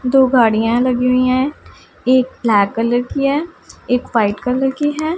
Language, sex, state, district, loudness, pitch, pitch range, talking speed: Hindi, female, Punjab, Pathankot, -16 LUFS, 250 Hz, 235-270 Hz, 175 wpm